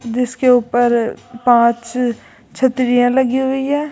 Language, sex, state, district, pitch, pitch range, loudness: Hindi, female, Rajasthan, Jaipur, 245 Hz, 240-260 Hz, -16 LUFS